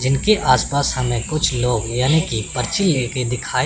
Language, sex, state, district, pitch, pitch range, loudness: Hindi, male, Chandigarh, Chandigarh, 130 Hz, 125-150 Hz, -18 LUFS